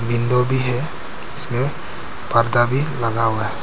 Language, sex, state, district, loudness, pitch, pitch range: Hindi, male, Arunachal Pradesh, Papum Pare, -19 LUFS, 120 Hz, 115-125 Hz